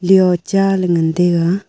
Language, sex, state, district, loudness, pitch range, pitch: Wancho, female, Arunachal Pradesh, Longding, -14 LUFS, 175-190 Hz, 180 Hz